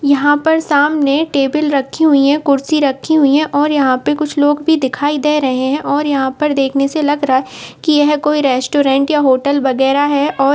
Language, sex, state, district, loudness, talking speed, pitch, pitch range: Hindi, female, Uttar Pradesh, Etah, -13 LUFS, 215 wpm, 285 Hz, 275-300 Hz